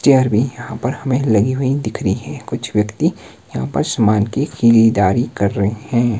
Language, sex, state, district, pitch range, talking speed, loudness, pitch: Hindi, male, Himachal Pradesh, Shimla, 105-130 Hz, 195 wpm, -17 LUFS, 115 Hz